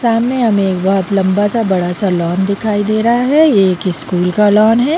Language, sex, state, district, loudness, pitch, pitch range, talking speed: Hindi, female, Chhattisgarh, Bilaspur, -13 LUFS, 205 Hz, 190-230 Hz, 230 wpm